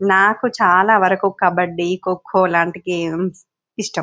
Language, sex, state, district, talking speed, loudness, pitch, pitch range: Telugu, female, Telangana, Nalgonda, 135 wpm, -17 LUFS, 185 Hz, 175-195 Hz